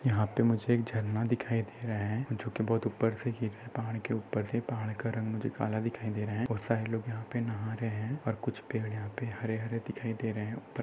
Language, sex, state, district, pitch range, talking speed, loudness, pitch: Hindi, male, Maharashtra, Chandrapur, 110-115 Hz, 260 wpm, -34 LUFS, 115 Hz